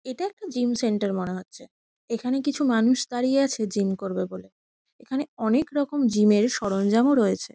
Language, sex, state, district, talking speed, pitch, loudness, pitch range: Bengali, female, West Bengal, Kolkata, 160 wpm, 240 Hz, -24 LUFS, 205-270 Hz